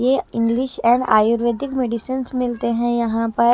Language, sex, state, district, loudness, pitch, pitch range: Hindi, female, Himachal Pradesh, Shimla, -19 LUFS, 235 Hz, 230-255 Hz